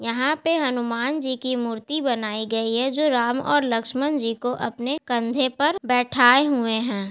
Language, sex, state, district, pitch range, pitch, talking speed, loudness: Hindi, female, Bihar, Gaya, 235-285 Hz, 250 Hz, 175 wpm, -22 LUFS